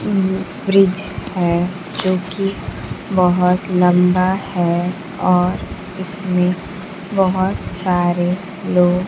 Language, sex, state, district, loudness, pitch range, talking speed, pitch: Hindi, female, Bihar, Kaimur, -18 LUFS, 180-190 Hz, 95 wpm, 185 Hz